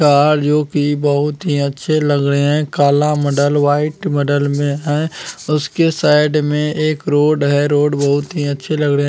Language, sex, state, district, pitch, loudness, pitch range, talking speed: Hindi, male, Bihar, Kishanganj, 145 Hz, -15 LUFS, 145-150 Hz, 185 wpm